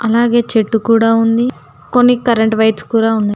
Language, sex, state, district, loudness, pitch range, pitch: Telugu, female, Telangana, Mahabubabad, -13 LUFS, 220-235 Hz, 225 Hz